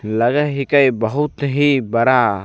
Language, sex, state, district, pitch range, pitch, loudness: Maithili, male, Bihar, Begusarai, 115-145 Hz, 135 Hz, -16 LUFS